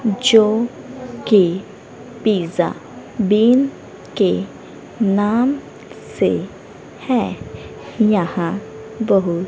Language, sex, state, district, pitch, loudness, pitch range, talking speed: Hindi, female, Haryana, Rohtak, 215 Hz, -18 LUFS, 195-230 Hz, 65 wpm